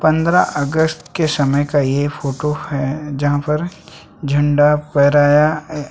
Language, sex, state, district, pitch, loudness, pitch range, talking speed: Hindi, male, Chhattisgarh, Sukma, 145 Hz, -16 LUFS, 145-155 Hz, 130 wpm